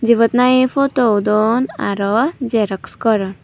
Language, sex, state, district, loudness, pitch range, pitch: Chakma, female, Tripura, Unakoti, -16 LUFS, 210-250 Hz, 230 Hz